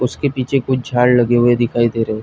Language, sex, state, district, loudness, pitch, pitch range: Hindi, male, Chhattisgarh, Bilaspur, -15 LUFS, 120 Hz, 120-130 Hz